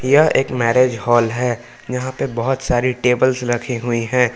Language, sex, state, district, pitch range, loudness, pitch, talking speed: Hindi, male, Jharkhand, Palamu, 120-130 Hz, -18 LUFS, 125 Hz, 180 wpm